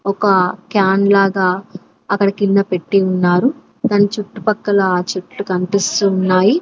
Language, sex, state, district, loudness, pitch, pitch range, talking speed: Telugu, female, Telangana, Mahabubabad, -15 LUFS, 195 Hz, 185-205 Hz, 100 wpm